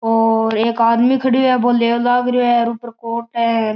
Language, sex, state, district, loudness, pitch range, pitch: Marwari, male, Rajasthan, Churu, -16 LUFS, 230-245 Hz, 235 Hz